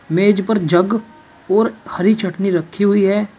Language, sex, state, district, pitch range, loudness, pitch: Hindi, male, Uttar Pradesh, Shamli, 185-215 Hz, -16 LUFS, 200 Hz